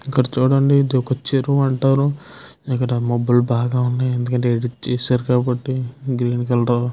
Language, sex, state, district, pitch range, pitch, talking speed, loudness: Telugu, male, Andhra Pradesh, Krishna, 120-135 Hz, 125 Hz, 145 wpm, -19 LUFS